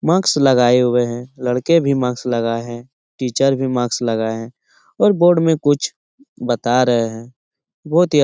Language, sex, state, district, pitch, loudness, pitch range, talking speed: Hindi, male, Bihar, Lakhisarai, 125 Hz, -17 LUFS, 120-145 Hz, 180 wpm